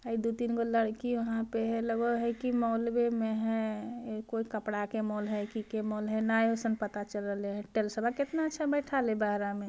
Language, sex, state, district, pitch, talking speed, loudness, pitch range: Magahi, female, Bihar, Jamui, 225 Hz, 215 wpm, -32 LUFS, 215-235 Hz